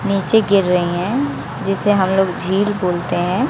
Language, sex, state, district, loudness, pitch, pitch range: Hindi, female, Bihar, West Champaran, -17 LUFS, 190 Hz, 180-205 Hz